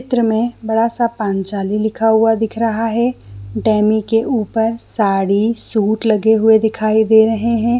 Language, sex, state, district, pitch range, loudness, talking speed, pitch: Hindi, female, Chhattisgarh, Bilaspur, 215-230 Hz, -15 LUFS, 160 wpm, 220 Hz